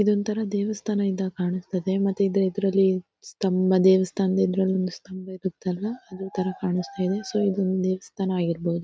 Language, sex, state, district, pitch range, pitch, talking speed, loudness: Kannada, female, Karnataka, Dakshina Kannada, 185-195 Hz, 190 Hz, 140 wpm, -25 LUFS